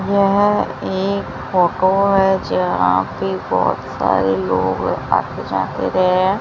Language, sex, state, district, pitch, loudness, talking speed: Hindi, female, Rajasthan, Bikaner, 185 Hz, -17 LUFS, 120 wpm